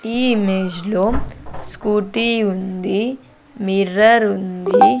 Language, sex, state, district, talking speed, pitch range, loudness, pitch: Telugu, female, Andhra Pradesh, Sri Satya Sai, 85 wpm, 190-230 Hz, -17 LUFS, 210 Hz